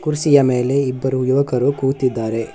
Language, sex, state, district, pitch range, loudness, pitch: Kannada, male, Karnataka, Bangalore, 125-140 Hz, -17 LUFS, 130 Hz